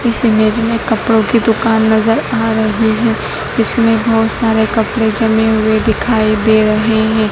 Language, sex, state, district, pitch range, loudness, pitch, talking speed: Hindi, female, Madhya Pradesh, Dhar, 220-225 Hz, -13 LUFS, 220 Hz, 165 wpm